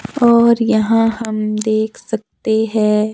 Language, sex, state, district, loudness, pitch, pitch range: Hindi, female, Himachal Pradesh, Shimla, -15 LUFS, 220 Hz, 215-225 Hz